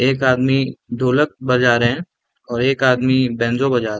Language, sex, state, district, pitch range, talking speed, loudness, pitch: Hindi, male, Chhattisgarh, Raigarh, 120-130 Hz, 195 wpm, -17 LUFS, 130 Hz